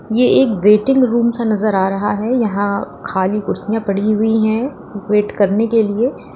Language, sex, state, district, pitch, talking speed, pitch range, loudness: Hindi, female, Uttar Pradesh, Lalitpur, 215 Hz, 180 wpm, 205-230 Hz, -16 LUFS